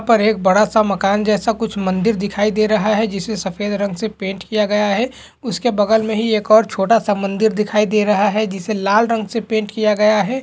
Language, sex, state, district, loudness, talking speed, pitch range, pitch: Hindi, male, Bihar, Jamui, -17 LUFS, 230 wpm, 205-220 Hz, 215 Hz